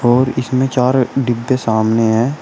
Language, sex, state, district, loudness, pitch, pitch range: Hindi, male, Uttar Pradesh, Shamli, -15 LUFS, 125 Hz, 115-130 Hz